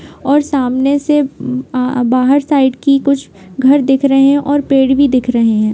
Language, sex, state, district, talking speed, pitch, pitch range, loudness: Hindi, female, Bihar, Jamui, 200 wpm, 270 Hz, 255-280 Hz, -12 LUFS